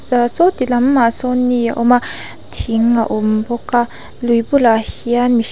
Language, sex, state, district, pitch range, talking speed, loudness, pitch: Mizo, female, Mizoram, Aizawl, 230-250 Hz, 195 wpm, -15 LUFS, 240 Hz